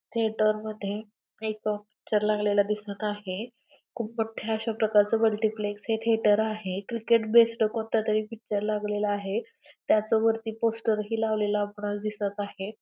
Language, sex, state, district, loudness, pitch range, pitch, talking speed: Marathi, female, Maharashtra, Pune, -27 LUFS, 210-225 Hz, 215 Hz, 135 wpm